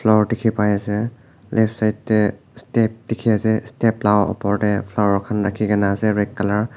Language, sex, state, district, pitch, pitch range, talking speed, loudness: Nagamese, male, Nagaland, Kohima, 105 Hz, 105-110 Hz, 195 wpm, -19 LUFS